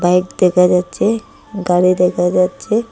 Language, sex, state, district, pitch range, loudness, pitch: Bengali, female, Assam, Hailakandi, 180-195 Hz, -15 LUFS, 180 Hz